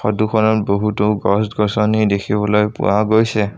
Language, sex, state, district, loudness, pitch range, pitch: Assamese, male, Assam, Sonitpur, -16 LUFS, 105-110 Hz, 105 Hz